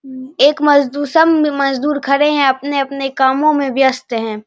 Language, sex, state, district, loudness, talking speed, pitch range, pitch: Hindi, male, Bihar, Saharsa, -14 LUFS, 150 wpm, 265-290 Hz, 275 Hz